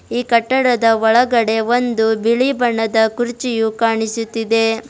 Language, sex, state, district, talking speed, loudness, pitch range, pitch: Kannada, female, Karnataka, Bidar, 100 wpm, -16 LUFS, 225-240 Hz, 230 Hz